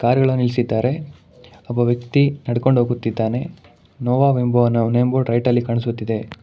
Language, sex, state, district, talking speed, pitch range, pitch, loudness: Kannada, male, Karnataka, Bangalore, 110 wpm, 115-130 Hz, 120 Hz, -19 LUFS